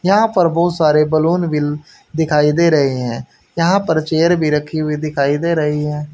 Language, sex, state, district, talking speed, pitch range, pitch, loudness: Hindi, male, Haryana, Charkhi Dadri, 195 wpm, 150-170 Hz, 155 Hz, -15 LUFS